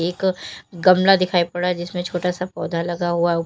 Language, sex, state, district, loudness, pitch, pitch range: Hindi, female, Uttar Pradesh, Lalitpur, -20 LUFS, 175 Hz, 175-180 Hz